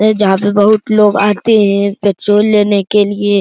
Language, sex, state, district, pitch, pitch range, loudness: Hindi, male, Bihar, Araria, 205 Hz, 200-210 Hz, -11 LUFS